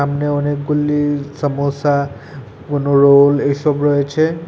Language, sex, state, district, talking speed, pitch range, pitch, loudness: Bengali, male, Tripura, West Tripura, 120 wpm, 140-145 Hz, 145 Hz, -15 LUFS